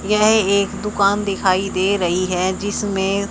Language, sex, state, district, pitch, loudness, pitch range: Hindi, male, Haryana, Charkhi Dadri, 200 Hz, -18 LUFS, 190-205 Hz